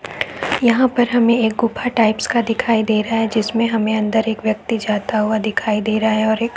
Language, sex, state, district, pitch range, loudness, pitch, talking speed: Hindi, female, Chhattisgarh, Raigarh, 215-230 Hz, -17 LUFS, 225 Hz, 210 wpm